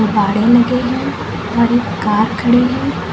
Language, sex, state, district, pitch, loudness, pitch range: Hindi, female, Uttar Pradesh, Lucknow, 235 Hz, -15 LUFS, 215-245 Hz